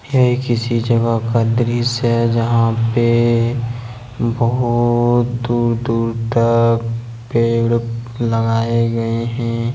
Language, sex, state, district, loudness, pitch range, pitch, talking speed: Hindi, male, Jharkhand, Ranchi, -17 LUFS, 115-120 Hz, 115 Hz, 90 wpm